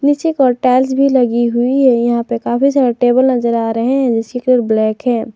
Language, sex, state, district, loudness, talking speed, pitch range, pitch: Hindi, female, Jharkhand, Garhwa, -13 LUFS, 200 wpm, 235-260 Hz, 245 Hz